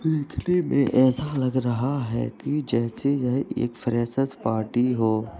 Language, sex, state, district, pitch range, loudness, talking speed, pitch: Hindi, male, Uttar Pradesh, Jalaun, 120-140 Hz, -24 LUFS, 135 wpm, 130 Hz